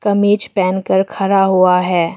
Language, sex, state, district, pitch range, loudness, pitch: Hindi, female, Arunachal Pradesh, Longding, 185-200 Hz, -14 LUFS, 190 Hz